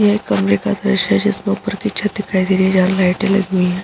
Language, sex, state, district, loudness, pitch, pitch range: Hindi, female, Bihar, Saharsa, -16 LUFS, 200 Hz, 185-205 Hz